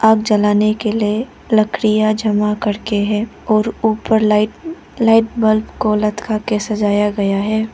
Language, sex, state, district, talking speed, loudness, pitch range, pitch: Hindi, female, Arunachal Pradesh, Lower Dibang Valley, 145 wpm, -16 LUFS, 210-220 Hz, 215 Hz